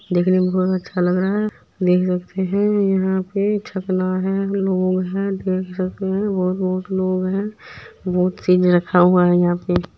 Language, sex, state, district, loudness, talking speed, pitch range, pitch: Maithili, female, Bihar, Supaul, -19 LUFS, 180 wpm, 180-195 Hz, 185 Hz